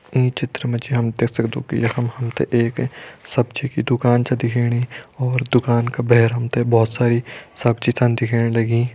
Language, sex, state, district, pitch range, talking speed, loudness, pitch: Hindi, male, Uttarakhand, Tehri Garhwal, 115-125 Hz, 195 wpm, -19 LUFS, 120 Hz